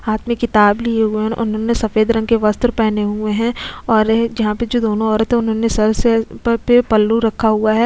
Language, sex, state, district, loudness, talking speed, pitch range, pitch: Hindi, female, Chhattisgarh, Kabirdham, -16 LUFS, 235 wpm, 215-230 Hz, 225 Hz